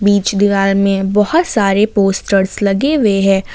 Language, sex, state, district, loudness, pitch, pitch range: Hindi, female, Jharkhand, Ranchi, -13 LUFS, 200 Hz, 195-210 Hz